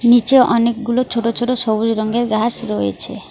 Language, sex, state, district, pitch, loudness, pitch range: Bengali, female, West Bengal, Alipurduar, 235 Hz, -16 LUFS, 220-240 Hz